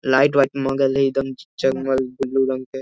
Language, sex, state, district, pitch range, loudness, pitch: Hindi, male, Bihar, Jahanabad, 130-135 Hz, -20 LUFS, 135 Hz